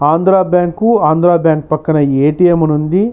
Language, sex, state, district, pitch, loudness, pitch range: Telugu, male, Andhra Pradesh, Chittoor, 165 Hz, -12 LUFS, 155-180 Hz